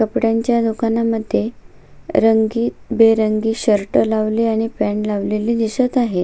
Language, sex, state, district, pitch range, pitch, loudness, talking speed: Marathi, female, Maharashtra, Sindhudurg, 215-230 Hz, 225 Hz, -17 LUFS, 95 wpm